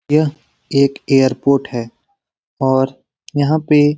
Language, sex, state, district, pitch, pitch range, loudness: Hindi, male, Bihar, Lakhisarai, 140 Hz, 130-150 Hz, -16 LUFS